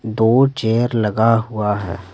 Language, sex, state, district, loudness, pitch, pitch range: Hindi, male, Bihar, Patna, -17 LUFS, 110 Hz, 105-115 Hz